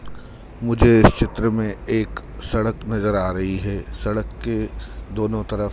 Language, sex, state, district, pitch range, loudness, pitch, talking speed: Hindi, male, Madhya Pradesh, Dhar, 100-110 Hz, -21 LUFS, 105 Hz, 145 wpm